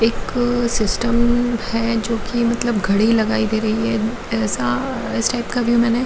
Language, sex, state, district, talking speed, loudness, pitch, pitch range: Hindi, female, Jharkhand, Jamtara, 150 wpm, -19 LUFS, 230 Hz, 220-240 Hz